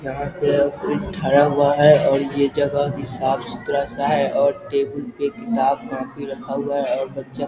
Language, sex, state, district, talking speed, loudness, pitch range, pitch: Hindi, male, Bihar, Vaishali, 190 wpm, -20 LUFS, 140-145 Hz, 140 Hz